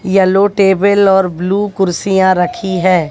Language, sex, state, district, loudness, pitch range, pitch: Hindi, female, Haryana, Jhajjar, -12 LUFS, 185-195 Hz, 190 Hz